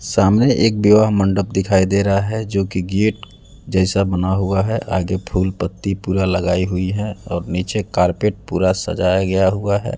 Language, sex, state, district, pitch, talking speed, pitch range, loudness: Hindi, male, Bihar, West Champaran, 95 Hz, 175 wpm, 95-105 Hz, -18 LUFS